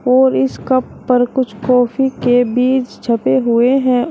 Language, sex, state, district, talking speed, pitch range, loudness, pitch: Hindi, female, Uttar Pradesh, Shamli, 160 wpm, 235-260 Hz, -14 LUFS, 245 Hz